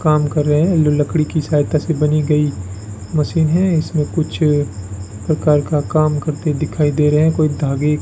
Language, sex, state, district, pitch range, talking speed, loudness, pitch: Hindi, male, Rajasthan, Bikaner, 145-155 Hz, 195 wpm, -16 LUFS, 150 Hz